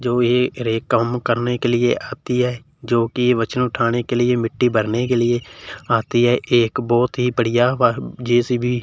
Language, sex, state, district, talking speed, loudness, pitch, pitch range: Hindi, male, Punjab, Fazilka, 190 wpm, -19 LUFS, 120 Hz, 120-125 Hz